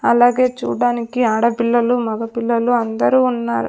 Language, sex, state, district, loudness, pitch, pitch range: Telugu, female, Andhra Pradesh, Sri Satya Sai, -17 LUFS, 235 Hz, 230-245 Hz